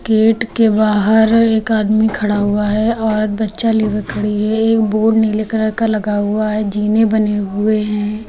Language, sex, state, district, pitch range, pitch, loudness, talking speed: Hindi, female, Uttar Pradesh, Lucknow, 210-220 Hz, 215 Hz, -15 LUFS, 190 wpm